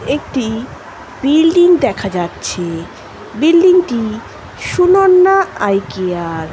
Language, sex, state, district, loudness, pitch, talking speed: Bengali, female, West Bengal, Malda, -13 LUFS, 240 Hz, 85 wpm